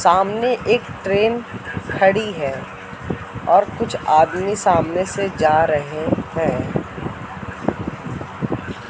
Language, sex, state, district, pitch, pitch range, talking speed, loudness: Hindi, male, Madhya Pradesh, Katni, 185 Hz, 155-205 Hz, 90 wpm, -20 LUFS